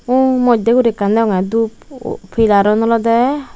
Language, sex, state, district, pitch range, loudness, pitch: Chakma, female, Tripura, Unakoti, 220-250 Hz, -14 LUFS, 230 Hz